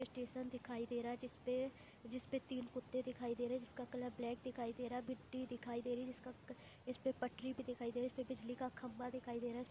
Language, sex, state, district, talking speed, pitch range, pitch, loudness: Hindi, female, Chhattisgarh, Bilaspur, 280 wpm, 245-255 Hz, 250 Hz, -46 LUFS